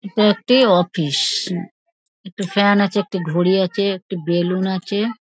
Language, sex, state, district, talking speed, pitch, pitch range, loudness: Bengali, female, West Bengal, Dakshin Dinajpur, 150 wpm, 195 Hz, 180-205 Hz, -18 LUFS